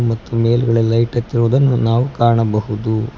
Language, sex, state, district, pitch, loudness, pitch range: Kannada, male, Karnataka, Koppal, 115 Hz, -16 LUFS, 115-120 Hz